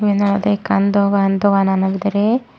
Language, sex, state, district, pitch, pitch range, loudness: Chakma, female, Tripura, Unakoti, 200 Hz, 195-205 Hz, -16 LUFS